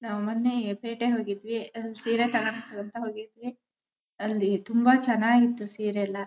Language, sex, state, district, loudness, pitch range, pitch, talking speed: Kannada, female, Karnataka, Shimoga, -27 LUFS, 210-235 Hz, 225 Hz, 135 wpm